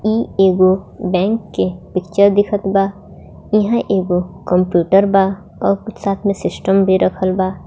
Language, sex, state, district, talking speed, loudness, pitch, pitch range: Bhojpuri, female, Jharkhand, Palamu, 140 wpm, -16 LUFS, 195 Hz, 185-200 Hz